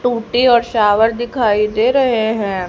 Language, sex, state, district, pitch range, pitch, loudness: Hindi, female, Haryana, Rohtak, 210-245 Hz, 230 Hz, -14 LUFS